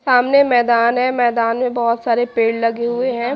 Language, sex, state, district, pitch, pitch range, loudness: Hindi, female, Haryana, Charkhi Dadri, 240 Hz, 235-250 Hz, -16 LUFS